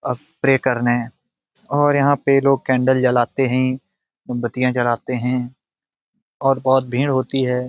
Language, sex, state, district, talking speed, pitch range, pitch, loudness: Hindi, male, Bihar, Jamui, 140 wpm, 125-135 Hz, 130 Hz, -18 LUFS